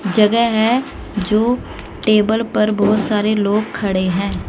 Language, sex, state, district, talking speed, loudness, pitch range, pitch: Hindi, female, Haryana, Jhajjar, 135 wpm, -16 LUFS, 205-220 Hz, 215 Hz